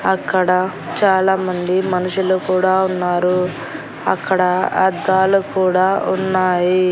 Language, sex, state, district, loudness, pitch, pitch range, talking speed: Telugu, female, Andhra Pradesh, Annamaya, -17 LUFS, 185 Hz, 180-190 Hz, 80 wpm